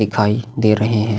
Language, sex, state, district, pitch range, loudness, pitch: Hindi, male, Chhattisgarh, Sukma, 105-110 Hz, -17 LUFS, 110 Hz